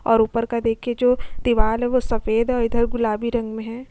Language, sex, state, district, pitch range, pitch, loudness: Hindi, female, Uttar Pradesh, Jyotiba Phule Nagar, 225-240 Hz, 235 Hz, -21 LUFS